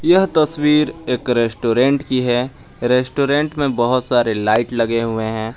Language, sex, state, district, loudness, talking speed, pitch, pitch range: Hindi, male, Jharkhand, Garhwa, -17 LUFS, 150 wpm, 125 Hz, 115-145 Hz